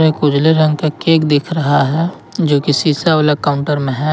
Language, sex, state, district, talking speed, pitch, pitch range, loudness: Hindi, male, Jharkhand, Ranchi, 215 wpm, 155 Hz, 145-160 Hz, -14 LUFS